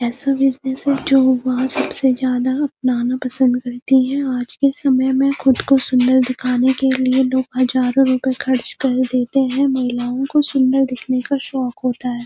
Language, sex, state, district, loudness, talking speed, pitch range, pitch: Hindi, female, Uttarakhand, Uttarkashi, -17 LUFS, 175 wpm, 255-270 Hz, 260 Hz